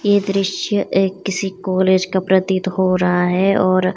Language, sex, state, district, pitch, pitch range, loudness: Hindi, female, Himachal Pradesh, Shimla, 190 Hz, 185-195 Hz, -17 LUFS